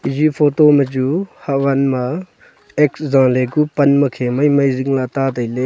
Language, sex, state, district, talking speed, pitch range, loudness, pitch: Wancho, male, Arunachal Pradesh, Longding, 180 wpm, 130-150 Hz, -16 LUFS, 140 Hz